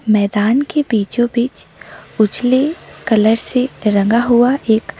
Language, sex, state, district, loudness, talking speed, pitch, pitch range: Hindi, female, Sikkim, Gangtok, -15 LUFS, 120 wpm, 230 Hz, 215-250 Hz